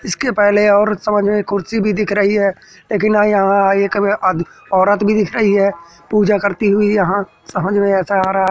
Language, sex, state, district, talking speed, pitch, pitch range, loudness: Hindi, male, Madhya Pradesh, Katni, 205 wpm, 205 Hz, 195-210 Hz, -15 LUFS